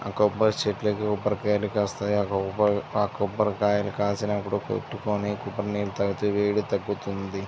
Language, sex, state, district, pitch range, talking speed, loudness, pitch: Telugu, male, Andhra Pradesh, Visakhapatnam, 100-105 Hz, 105 wpm, -26 LUFS, 105 Hz